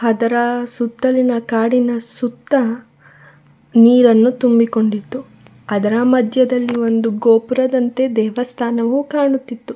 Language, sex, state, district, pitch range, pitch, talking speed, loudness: Kannada, female, Karnataka, Shimoga, 230-255 Hz, 240 Hz, 75 wpm, -15 LUFS